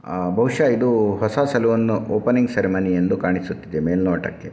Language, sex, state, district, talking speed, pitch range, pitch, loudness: Kannada, male, Karnataka, Shimoga, 160 wpm, 90-115 Hz, 105 Hz, -20 LUFS